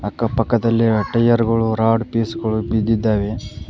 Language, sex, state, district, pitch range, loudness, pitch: Kannada, male, Karnataka, Koppal, 110-115 Hz, -18 LUFS, 115 Hz